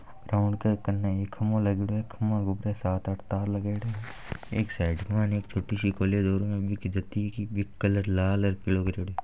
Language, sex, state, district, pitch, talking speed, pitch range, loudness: Marwari, male, Rajasthan, Nagaur, 100 Hz, 175 wpm, 95-105 Hz, -29 LUFS